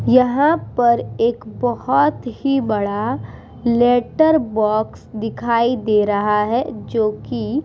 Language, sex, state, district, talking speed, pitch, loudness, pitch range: Hindi, female, Bihar, Vaishali, 120 wpm, 235 Hz, -18 LUFS, 215-250 Hz